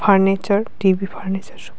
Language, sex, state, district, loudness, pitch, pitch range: Bengali, female, Tripura, West Tripura, -19 LUFS, 195 Hz, 190-200 Hz